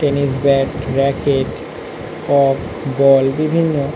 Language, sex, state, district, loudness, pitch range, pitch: Bengali, male, West Bengal, North 24 Parganas, -16 LUFS, 135-145 Hz, 140 Hz